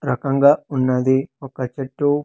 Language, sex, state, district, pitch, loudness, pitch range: Telugu, male, Andhra Pradesh, Sri Satya Sai, 135 Hz, -19 LUFS, 130-145 Hz